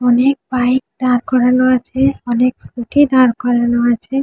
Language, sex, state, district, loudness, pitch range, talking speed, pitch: Bengali, female, West Bengal, Jhargram, -14 LUFS, 240-260 Hz, 155 wpm, 250 Hz